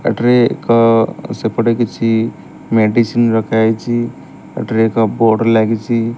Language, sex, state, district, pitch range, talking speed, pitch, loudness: Odia, male, Odisha, Malkangiri, 110-115 Hz, 95 wpm, 115 Hz, -14 LUFS